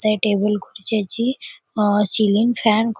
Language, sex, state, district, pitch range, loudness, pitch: Marathi, female, Maharashtra, Chandrapur, 205-225 Hz, -17 LUFS, 215 Hz